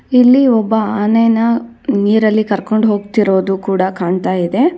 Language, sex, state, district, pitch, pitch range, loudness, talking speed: Kannada, female, Karnataka, Bangalore, 215 Hz, 195-230 Hz, -13 LUFS, 115 wpm